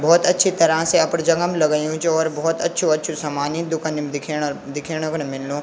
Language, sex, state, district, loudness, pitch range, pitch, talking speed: Garhwali, male, Uttarakhand, Tehri Garhwal, -20 LUFS, 150-165 Hz, 160 Hz, 235 wpm